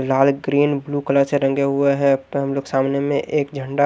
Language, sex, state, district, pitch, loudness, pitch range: Hindi, male, Odisha, Nuapada, 140 Hz, -19 LUFS, 135-140 Hz